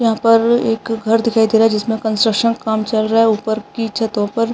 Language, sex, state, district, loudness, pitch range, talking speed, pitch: Hindi, male, Uttarakhand, Tehri Garhwal, -16 LUFS, 220-230 Hz, 265 wpm, 225 Hz